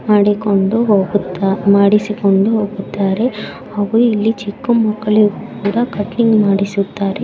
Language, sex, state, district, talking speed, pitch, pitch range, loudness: Kannada, female, Karnataka, Bellary, 90 wpm, 205 Hz, 200-220 Hz, -15 LUFS